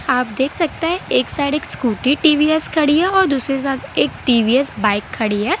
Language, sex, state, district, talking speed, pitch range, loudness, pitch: Hindi, female, Gujarat, Valsad, 205 wpm, 250-315 Hz, -17 LUFS, 275 Hz